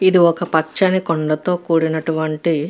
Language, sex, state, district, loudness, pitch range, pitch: Telugu, female, Andhra Pradesh, Guntur, -18 LUFS, 160-175 Hz, 165 Hz